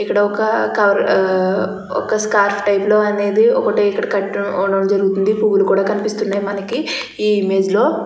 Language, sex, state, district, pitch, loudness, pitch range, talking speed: Telugu, female, Andhra Pradesh, Chittoor, 205 Hz, -16 LUFS, 195-215 Hz, 140 wpm